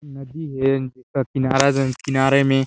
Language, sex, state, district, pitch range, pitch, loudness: Hindi, male, Chhattisgarh, Sarguja, 135-140 Hz, 135 Hz, -20 LUFS